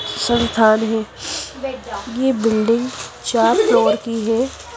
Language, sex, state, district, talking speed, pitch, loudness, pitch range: Hindi, female, Bihar, West Champaran, 100 wpm, 235 Hz, -18 LUFS, 225-255 Hz